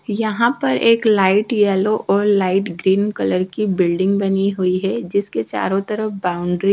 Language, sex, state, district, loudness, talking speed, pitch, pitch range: Hindi, female, Odisha, Sambalpur, -18 LUFS, 170 wpm, 200 Hz, 190-215 Hz